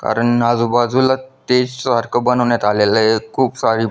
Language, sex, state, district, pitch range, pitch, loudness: Marathi, male, Maharashtra, Solapur, 115-125 Hz, 120 Hz, -16 LUFS